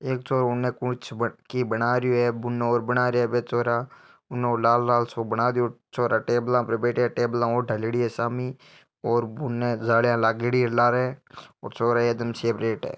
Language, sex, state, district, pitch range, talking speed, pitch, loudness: Marwari, male, Rajasthan, Nagaur, 120-125 Hz, 195 wpm, 120 Hz, -24 LUFS